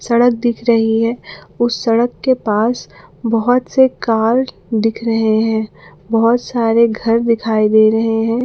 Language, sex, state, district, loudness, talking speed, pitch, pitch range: Hindi, female, Jharkhand, Palamu, -15 LUFS, 150 wpm, 230 Hz, 225-240 Hz